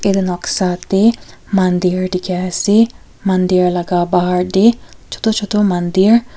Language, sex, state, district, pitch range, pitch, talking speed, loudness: Nagamese, female, Nagaland, Kohima, 180-205 Hz, 185 Hz, 120 wpm, -15 LUFS